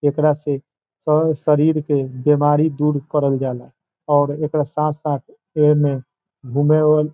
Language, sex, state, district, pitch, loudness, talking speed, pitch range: Bhojpuri, male, Bihar, Saran, 150 Hz, -18 LUFS, 110 wpm, 140-150 Hz